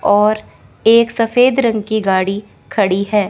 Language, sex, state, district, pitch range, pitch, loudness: Hindi, female, Chandigarh, Chandigarh, 205-230 Hz, 215 Hz, -15 LUFS